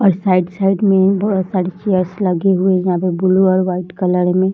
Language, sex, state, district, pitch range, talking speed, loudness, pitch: Hindi, female, Bihar, Jamui, 180-195 Hz, 225 wpm, -15 LUFS, 185 Hz